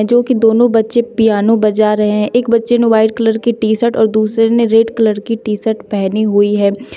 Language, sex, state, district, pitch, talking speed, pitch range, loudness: Hindi, female, Uttar Pradesh, Shamli, 225 Hz, 230 wpm, 215-230 Hz, -13 LUFS